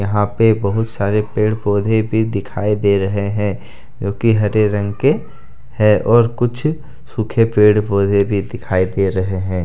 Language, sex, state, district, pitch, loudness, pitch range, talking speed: Hindi, male, Jharkhand, Deoghar, 105 Hz, -16 LUFS, 100-110 Hz, 160 wpm